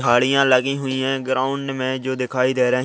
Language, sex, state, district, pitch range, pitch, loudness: Hindi, male, Chhattisgarh, Rajnandgaon, 130-135 Hz, 130 Hz, -20 LUFS